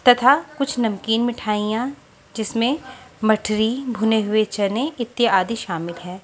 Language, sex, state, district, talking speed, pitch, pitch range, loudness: Hindi, female, Haryana, Jhajjar, 115 wpm, 230 Hz, 215-245 Hz, -21 LUFS